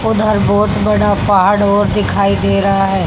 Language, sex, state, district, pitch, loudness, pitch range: Hindi, female, Haryana, Charkhi Dadri, 200 Hz, -13 LUFS, 190-210 Hz